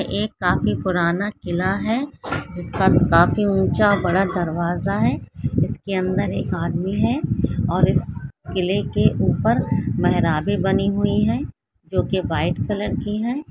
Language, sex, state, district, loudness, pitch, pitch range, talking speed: Hindi, female, Bihar, Jamui, -21 LUFS, 195 Hz, 180-205 Hz, 140 wpm